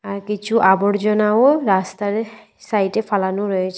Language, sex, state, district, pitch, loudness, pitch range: Bengali, female, Tripura, West Tripura, 205 Hz, -18 LUFS, 195-215 Hz